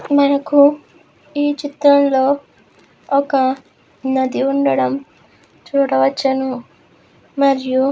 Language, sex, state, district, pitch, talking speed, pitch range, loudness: Telugu, female, Andhra Pradesh, Krishna, 275 Hz, 70 wpm, 265-285 Hz, -16 LUFS